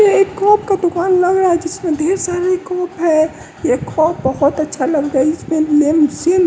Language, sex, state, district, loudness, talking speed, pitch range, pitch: Hindi, male, Bihar, West Champaran, -15 LUFS, 205 wpm, 310-370 Hz, 340 Hz